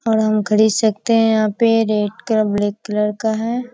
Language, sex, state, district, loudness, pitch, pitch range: Hindi, female, Bihar, Kishanganj, -17 LUFS, 220 Hz, 210-225 Hz